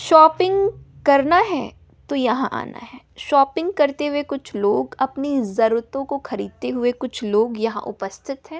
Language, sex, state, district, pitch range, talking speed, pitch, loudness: Hindi, female, Bihar, West Champaran, 225-295 Hz, 155 wpm, 275 Hz, -20 LUFS